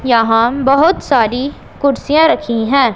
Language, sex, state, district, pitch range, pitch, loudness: Hindi, female, Punjab, Pathankot, 235-285 Hz, 270 Hz, -13 LUFS